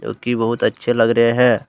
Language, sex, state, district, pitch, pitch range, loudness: Hindi, male, Jharkhand, Deoghar, 120 Hz, 115-120 Hz, -17 LUFS